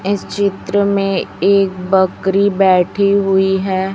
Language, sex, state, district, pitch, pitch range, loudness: Hindi, female, Chhattisgarh, Raipur, 195 Hz, 190-200 Hz, -15 LUFS